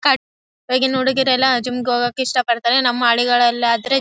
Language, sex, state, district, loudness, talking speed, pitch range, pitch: Kannada, female, Karnataka, Bellary, -17 LUFS, 150 wpm, 240-260 Hz, 250 Hz